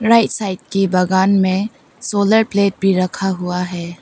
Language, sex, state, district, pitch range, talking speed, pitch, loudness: Hindi, female, Arunachal Pradesh, Papum Pare, 185-205 Hz, 165 wpm, 195 Hz, -16 LUFS